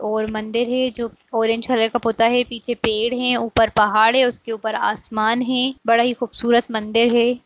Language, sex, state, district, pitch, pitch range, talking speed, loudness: Kumaoni, female, Uttarakhand, Uttarkashi, 235 Hz, 225-245 Hz, 195 wpm, -19 LUFS